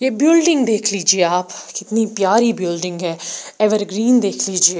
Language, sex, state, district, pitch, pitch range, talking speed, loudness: Hindi, female, Bihar, Patna, 205 Hz, 180-230 Hz, 160 wpm, -16 LUFS